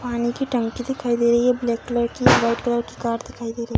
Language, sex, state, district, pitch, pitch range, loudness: Hindi, female, Bihar, Darbhanga, 235 Hz, 235-245 Hz, -21 LUFS